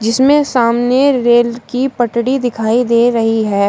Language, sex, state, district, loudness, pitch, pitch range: Hindi, female, Uttar Pradesh, Shamli, -13 LUFS, 240 Hz, 230-255 Hz